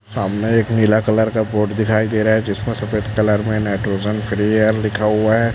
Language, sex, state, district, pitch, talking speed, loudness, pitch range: Hindi, male, Chhattisgarh, Raipur, 110 Hz, 215 wpm, -17 LUFS, 105-110 Hz